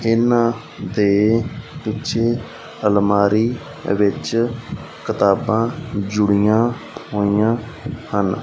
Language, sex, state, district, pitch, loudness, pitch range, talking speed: Punjabi, male, Punjab, Fazilka, 110 Hz, -19 LUFS, 100-115 Hz, 65 wpm